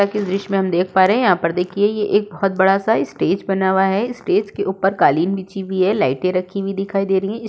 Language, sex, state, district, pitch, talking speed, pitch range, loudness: Hindi, female, Uttar Pradesh, Budaun, 195 Hz, 305 wpm, 190-205 Hz, -18 LUFS